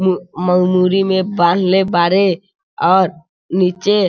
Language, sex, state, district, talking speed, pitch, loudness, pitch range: Hindi, male, Bihar, Sitamarhi, 105 wpm, 185 Hz, -15 LUFS, 180-195 Hz